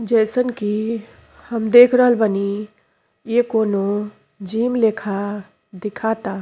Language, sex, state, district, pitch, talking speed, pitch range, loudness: Bhojpuri, female, Uttar Pradesh, Ghazipur, 220 Hz, 105 wpm, 205-230 Hz, -18 LUFS